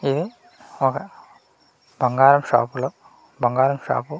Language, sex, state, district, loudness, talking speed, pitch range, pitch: Telugu, male, Andhra Pradesh, Manyam, -20 LUFS, 115 wpm, 125-145 Hz, 135 Hz